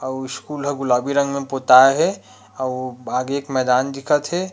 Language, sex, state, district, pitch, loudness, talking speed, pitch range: Chhattisgarhi, male, Chhattisgarh, Rajnandgaon, 135 Hz, -19 LUFS, 185 wpm, 130-140 Hz